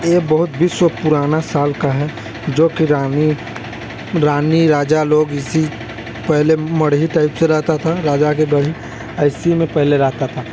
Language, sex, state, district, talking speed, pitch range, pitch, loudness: Hindi, male, Chhattisgarh, Balrampur, 165 wpm, 140-160 Hz, 150 Hz, -16 LUFS